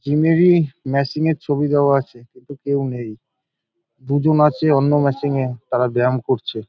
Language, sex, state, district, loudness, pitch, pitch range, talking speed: Bengali, male, West Bengal, North 24 Parganas, -18 LUFS, 140 Hz, 130-150 Hz, 170 wpm